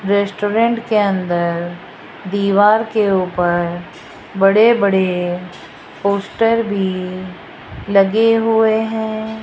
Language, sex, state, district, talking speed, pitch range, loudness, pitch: Hindi, female, Rajasthan, Jaipur, 85 wpm, 185-220 Hz, -16 LUFS, 200 Hz